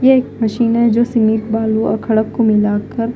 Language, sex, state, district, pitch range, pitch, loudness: Hindi, female, Punjab, Fazilka, 220-235 Hz, 225 Hz, -15 LUFS